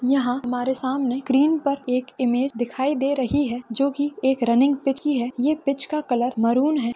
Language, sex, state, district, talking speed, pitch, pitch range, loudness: Hindi, female, Maharashtra, Solapur, 205 wpm, 265 Hz, 245-280 Hz, -22 LUFS